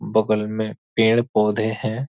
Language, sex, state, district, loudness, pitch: Hindi, male, Bihar, East Champaran, -21 LUFS, 110 Hz